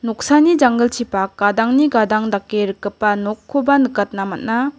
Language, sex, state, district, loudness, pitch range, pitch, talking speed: Garo, female, Meghalaya, West Garo Hills, -17 LUFS, 205-260 Hz, 220 Hz, 115 wpm